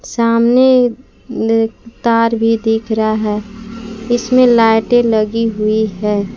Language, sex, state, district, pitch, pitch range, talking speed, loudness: Hindi, female, Jharkhand, Palamu, 225 Hz, 220-235 Hz, 105 wpm, -13 LUFS